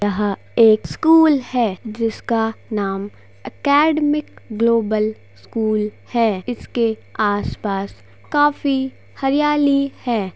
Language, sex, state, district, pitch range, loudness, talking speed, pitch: Hindi, female, Uttar Pradesh, Gorakhpur, 210-275 Hz, -19 LUFS, 85 wpm, 230 Hz